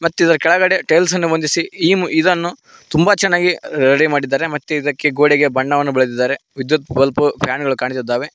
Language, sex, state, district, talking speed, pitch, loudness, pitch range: Kannada, male, Karnataka, Koppal, 160 wpm, 150 Hz, -15 LUFS, 135-170 Hz